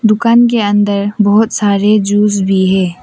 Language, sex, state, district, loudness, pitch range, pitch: Hindi, female, Arunachal Pradesh, Papum Pare, -11 LUFS, 200-215 Hz, 205 Hz